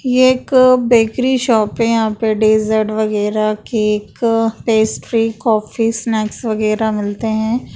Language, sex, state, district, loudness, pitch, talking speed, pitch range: Hindi, female, Uttar Pradesh, Jalaun, -15 LUFS, 220 Hz, 130 wpm, 215-230 Hz